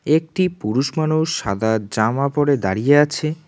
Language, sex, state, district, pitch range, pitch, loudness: Bengali, male, West Bengal, Cooch Behar, 110-155 Hz, 145 Hz, -19 LUFS